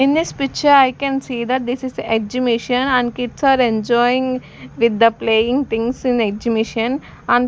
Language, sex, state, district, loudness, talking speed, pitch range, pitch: English, female, Punjab, Fazilka, -17 LUFS, 200 wpm, 230-260 Hz, 245 Hz